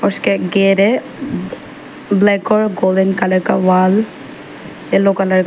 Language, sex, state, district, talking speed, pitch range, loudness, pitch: Hindi, female, Arunachal Pradesh, Papum Pare, 140 wpm, 185-210 Hz, -14 LUFS, 195 Hz